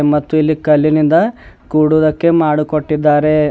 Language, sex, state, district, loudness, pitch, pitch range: Kannada, male, Karnataka, Bidar, -13 LUFS, 155 Hz, 150-155 Hz